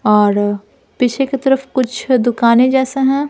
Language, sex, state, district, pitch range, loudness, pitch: Hindi, female, Bihar, Patna, 230-270 Hz, -14 LUFS, 255 Hz